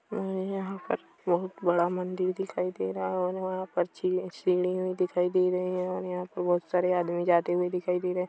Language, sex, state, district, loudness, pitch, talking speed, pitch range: Hindi, male, Chhattisgarh, Rajnandgaon, -29 LUFS, 180 Hz, 225 wpm, 180-185 Hz